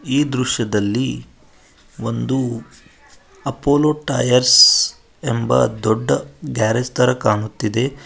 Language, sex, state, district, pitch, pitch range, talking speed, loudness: Kannada, male, Karnataka, Koppal, 125 Hz, 110-140 Hz, 75 wpm, -17 LUFS